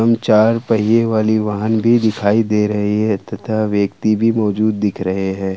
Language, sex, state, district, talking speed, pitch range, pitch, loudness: Hindi, male, Jharkhand, Ranchi, 170 wpm, 105-110 Hz, 110 Hz, -16 LUFS